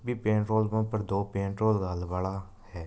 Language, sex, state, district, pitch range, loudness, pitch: Marwari, male, Rajasthan, Nagaur, 95-110 Hz, -29 LUFS, 100 Hz